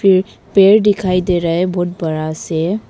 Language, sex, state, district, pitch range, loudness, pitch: Hindi, female, Arunachal Pradesh, Papum Pare, 165-195 Hz, -15 LUFS, 180 Hz